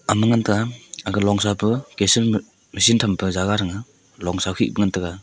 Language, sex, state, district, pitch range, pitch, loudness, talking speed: Wancho, male, Arunachal Pradesh, Longding, 95-115 Hz, 105 Hz, -20 LUFS, 205 wpm